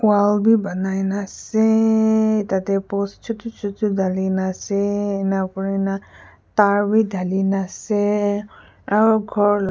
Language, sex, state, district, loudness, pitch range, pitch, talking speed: Nagamese, female, Nagaland, Kohima, -20 LUFS, 195-215 Hz, 205 Hz, 105 wpm